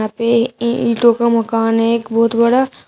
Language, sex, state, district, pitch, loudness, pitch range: Hindi, female, Uttar Pradesh, Shamli, 235 Hz, -15 LUFS, 230-235 Hz